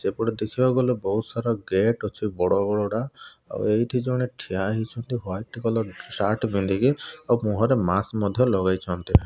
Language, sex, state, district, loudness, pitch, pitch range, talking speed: Odia, male, Odisha, Malkangiri, -24 LUFS, 110 Hz, 100-120 Hz, 150 wpm